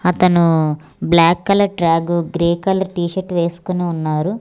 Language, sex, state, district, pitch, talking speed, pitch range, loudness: Telugu, female, Andhra Pradesh, Manyam, 170 Hz, 135 wpm, 165-185 Hz, -16 LUFS